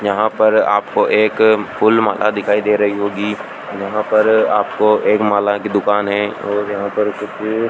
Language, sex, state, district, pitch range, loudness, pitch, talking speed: Hindi, male, Rajasthan, Bikaner, 100-110 Hz, -15 LUFS, 105 Hz, 180 wpm